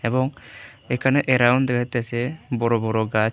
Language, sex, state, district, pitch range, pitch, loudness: Bengali, male, Tripura, West Tripura, 115-130 Hz, 120 Hz, -22 LUFS